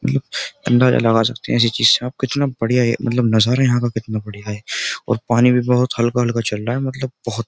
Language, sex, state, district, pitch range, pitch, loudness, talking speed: Hindi, male, Uttar Pradesh, Jyotiba Phule Nagar, 115-125 Hz, 120 Hz, -18 LUFS, 240 wpm